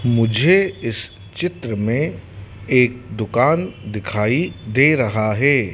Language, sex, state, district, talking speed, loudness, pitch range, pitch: Hindi, male, Madhya Pradesh, Dhar, 105 wpm, -18 LUFS, 105-140 Hz, 115 Hz